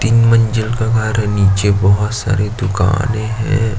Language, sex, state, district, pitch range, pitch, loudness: Hindi, male, Chhattisgarh, Jashpur, 100-115 Hz, 110 Hz, -15 LUFS